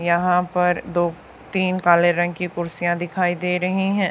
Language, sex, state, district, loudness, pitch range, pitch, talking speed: Hindi, female, Haryana, Charkhi Dadri, -20 LUFS, 175-180 Hz, 175 Hz, 175 wpm